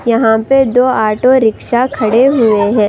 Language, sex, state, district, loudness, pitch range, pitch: Hindi, female, Uttar Pradesh, Budaun, -11 LUFS, 220-255 Hz, 235 Hz